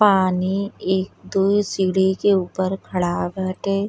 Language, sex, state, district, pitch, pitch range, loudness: Bhojpuri, female, Uttar Pradesh, Deoria, 190 Hz, 185-195 Hz, -21 LUFS